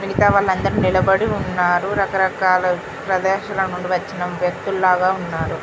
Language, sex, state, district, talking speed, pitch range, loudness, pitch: Telugu, female, Telangana, Karimnagar, 85 wpm, 180-195 Hz, -19 LUFS, 190 Hz